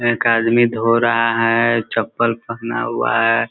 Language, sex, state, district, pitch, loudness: Hindi, male, Bihar, Sitamarhi, 115 Hz, -17 LUFS